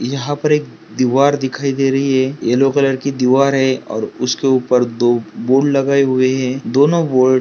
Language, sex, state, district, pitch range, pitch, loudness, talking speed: Hindi, male, Maharashtra, Pune, 130-140 Hz, 135 Hz, -15 LUFS, 195 wpm